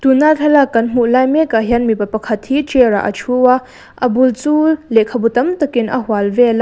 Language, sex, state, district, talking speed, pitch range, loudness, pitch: Mizo, female, Mizoram, Aizawl, 255 wpm, 230-280 Hz, -14 LUFS, 250 Hz